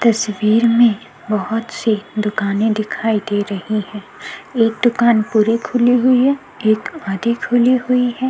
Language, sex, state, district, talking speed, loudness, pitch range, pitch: Hindi, female, Uttarakhand, Tehri Garhwal, 135 wpm, -16 LUFS, 215-240 Hz, 225 Hz